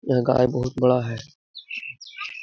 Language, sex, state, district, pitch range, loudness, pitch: Hindi, male, Bihar, Jamui, 125-145 Hz, -23 LUFS, 125 Hz